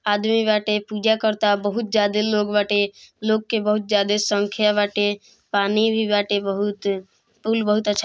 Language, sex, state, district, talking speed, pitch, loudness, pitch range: Bhojpuri, female, Bihar, East Champaran, 165 wpm, 210 Hz, -21 LUFS, 205-215 Hz